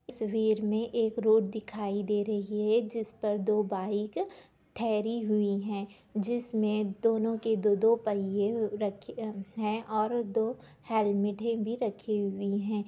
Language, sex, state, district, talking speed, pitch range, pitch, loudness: Hindi, female, Bihar, Gopalganj, 135 wpm, 205-225 Hz, 215 Hz, -30 LUFS